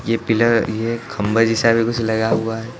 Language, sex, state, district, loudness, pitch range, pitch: Hindi, male, Uttar Pradesh, Lucknow, -18 LUFS, 110-115 Hz, 115 Hz